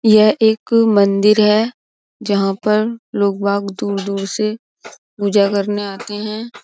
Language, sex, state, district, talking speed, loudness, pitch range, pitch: Hindi, female, Uttar Pradesh, Jyotiba Phule Nagar, 115 wpm, -16 LUFS, 200-220 Hz, 210 Hz